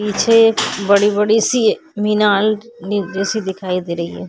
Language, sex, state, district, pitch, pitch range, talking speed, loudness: Hindi, female, Uttar Pradesh, Jyotiba Phule Nagar, 205 Hz, 195-220 Hz, 125 wpm, -16 LUFS